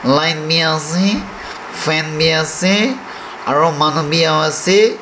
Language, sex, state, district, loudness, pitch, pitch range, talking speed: Nagamese, male, Nagaland, Dimapur, -15 LUFS, 155 Hz, 155-165 Hz, 95 wpm